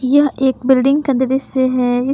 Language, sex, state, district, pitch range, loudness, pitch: Hindi, female, Jharkhand, Palamu, 255-270 Hz, -15 LUFS, 265 Hz